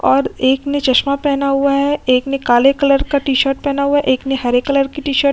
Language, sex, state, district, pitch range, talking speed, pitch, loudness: Hindi, female, Bihar, Vaishali, 265-280 Hz, 260 wpm, 275 Hz, -15 LUFS